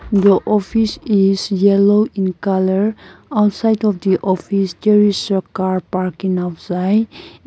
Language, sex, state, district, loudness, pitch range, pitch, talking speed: English, female, Nagaland, Kohima, -16 LUFS, 190-210 Hz, 195 Hz, 130 wpm